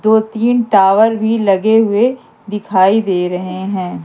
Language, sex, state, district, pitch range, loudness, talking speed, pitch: Hindi, female, Madhya Pradesh, Umaria, 190-225 Hz, -13 LUFS, 150 wpm, 210 Hz